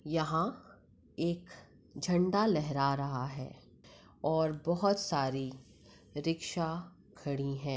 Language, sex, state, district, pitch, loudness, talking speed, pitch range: Hindi, female, Bihar, Madhepura, 160 Hz, -34 LUFS, 95 wpm, 140-175 Hz